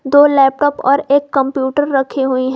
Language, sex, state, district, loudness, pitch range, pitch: Hindi, female, Jharkhand, Garhwa, -14 LUFS, 265-285 Hz, 275 Hz